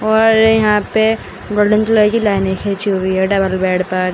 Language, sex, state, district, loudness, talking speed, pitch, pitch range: Hindi, female, Uttar Pradesh, Shamli, -14 LUFS, 190 wpm, 210 Hz, 190-220 Hz